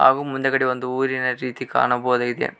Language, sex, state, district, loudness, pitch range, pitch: Kannada, male, Karnataka, Koppal, -21 LUFS, 125-135 Hz, 130 Hz